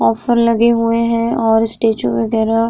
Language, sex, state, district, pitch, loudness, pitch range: Hindi, female, Uttar Pradesh, Muzaffarnagar, 230 Hz, -14 LUFS, 220-230 Hz